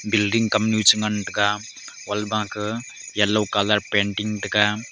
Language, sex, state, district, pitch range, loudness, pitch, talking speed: Wancho, male, Arunachal Pradesh, Longding, 105-110 Hz, -21 LUFS, 105 Hz, 160 wpm